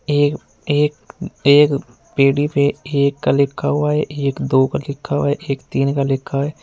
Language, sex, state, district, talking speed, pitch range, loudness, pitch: Hindi, male, Uttar Pradesh, Saharanpur, 170 wpm, 140-145 Hz, -18 LUFS, 140 Hz